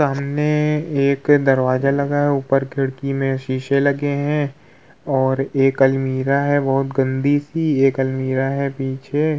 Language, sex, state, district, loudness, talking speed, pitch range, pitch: Hindi, male, Uttar Pradesh, Hamirpur, -19 LUFS, 145 wpm, 135-145 Hz, 135 Hz